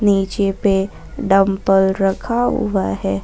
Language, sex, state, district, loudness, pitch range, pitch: Hindi, female, Jharkhand, Ranchi, -17 LUFS, 190-200 Hz, 195 Hz